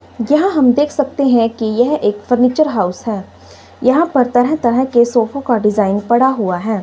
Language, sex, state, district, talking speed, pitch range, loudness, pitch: Hindi, female, Himachal Pradesh, Shimla, 195 wpm, 220-275 Hz, -14 LUFS, 245 Hz